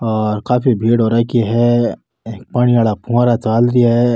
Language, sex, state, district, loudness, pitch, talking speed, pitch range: Rajasthani, male, Rajasthan, Nagaur, -14 LUFS, 120 Hz, 185 wpm, 115-120 Hz